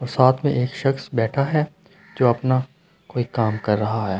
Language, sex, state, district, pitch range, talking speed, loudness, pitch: Hindi, male, Delhi, New Delhi, 115-150 Hz, 185 wpm, -21 LUFS, 130 Hz